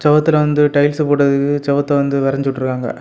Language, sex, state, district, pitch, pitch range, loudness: Tamil, male, Tamil Nadu, Kanyakumari, 145 Hz, 140-150 Hz, -15 LUFS